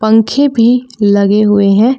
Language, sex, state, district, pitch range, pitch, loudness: Hindi, female, Jharkhand, Palamu, 205-245 Hz, 220 Hz, -10 LUFS